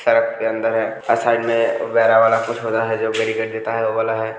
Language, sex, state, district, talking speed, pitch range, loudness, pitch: Hindi, male, Uttar Pradesh, Hamirpur, 260 wpm, 110-115 Hz, -18 LUFS, 115 Hz